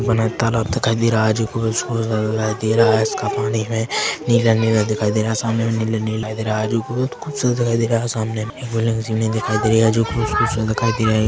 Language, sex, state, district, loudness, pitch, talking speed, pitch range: Hindi, male, Chhattisgarh, Korba, -19 LUFS, 110 Hz, 245 wpm, 110-115 Hz